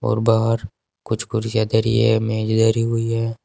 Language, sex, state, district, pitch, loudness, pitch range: Hindi, male, Uttar Pradesh, Saharanpur, 110 Hz, -19 LUFS, 110-115 Hz